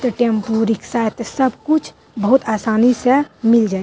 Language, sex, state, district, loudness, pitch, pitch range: Maithili, female, Bihar, Madhepura, -17 LUFS, 235 Hz, 220-255 Hz